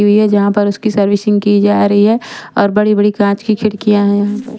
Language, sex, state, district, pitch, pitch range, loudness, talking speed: Hindi, female, Chandigarh, Chandigarh, 205 Hz, 205-215 Hz, -12 LUFS, 235 wpm